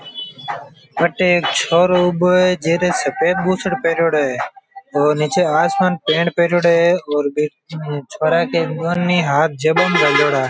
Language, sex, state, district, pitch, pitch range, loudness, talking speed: Marwari, male, Rajasthan, Nagaur, 170 Hz, 155-180 Hz, -16 LUFS, 150 wpm